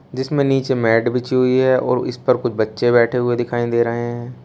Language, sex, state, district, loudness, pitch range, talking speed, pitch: Hindi, male, Uttar Pradesh, Shamli, -18 LUFS, 120-130 Hz, 230 wpm, 120 Hz